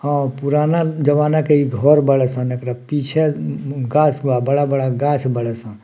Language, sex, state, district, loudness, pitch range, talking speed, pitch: Bhojpuri, male, Bihar, Muzaffarpur, -17 LUFS, 125-150 Hz, 165 wpm, 140 Hz